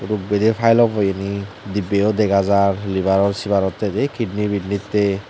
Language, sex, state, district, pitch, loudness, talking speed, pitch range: Chakma, male, Tripura, Dhalai, 100 Hz, -19 LUFS, 135 wpm, 100-105 Hz